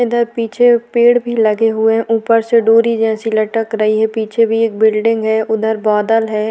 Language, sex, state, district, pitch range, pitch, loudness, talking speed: Hindi, female, Uttarakhand, Tehri Garhwal, 220-230 Hz, 225 Hz, -14 LUFS, 200 wpm